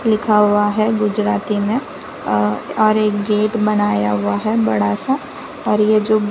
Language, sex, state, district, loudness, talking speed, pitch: Hindi, female, Gujarat, Valsad, -17 LUFS, 160 wpm, 210 Hz